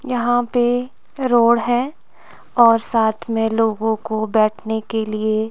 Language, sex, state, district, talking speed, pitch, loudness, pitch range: Hindi, female, Himachal Pradesh, Shimla, 130 wpm, 225 Hz, -18 LUFS, 220-245 Hz